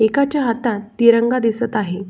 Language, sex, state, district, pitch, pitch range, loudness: Marathi, male, Maharashtra, Solapur, 235 Hz, 215-240 Hz, -17 LUFS